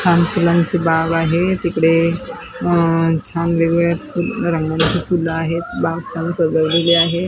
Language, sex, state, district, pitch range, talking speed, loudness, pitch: Marathi, female, Maharashtra, Mumbai Suburban, 165-170 Hz, 130 wpm, -17 LUFS, 170 Hz